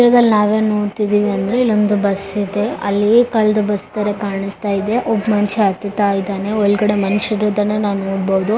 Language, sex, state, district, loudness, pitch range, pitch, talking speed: Kannada, female, Karnataka, Bellary, -16 LUFS, 200-215 Hz, 205 Hz, 170 wpm